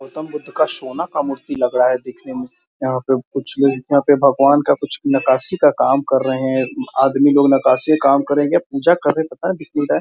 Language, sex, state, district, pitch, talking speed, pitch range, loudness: Hindi, male, Bihar, Muzaffarpur, 140 Hz, 215 wpm, 130-155 Hz, -16 LUFS